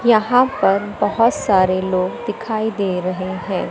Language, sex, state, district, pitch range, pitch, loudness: Hindi, female, Madhya Pradesh, Katni, 185-225 Hz, 205 Hz, -18 LUFS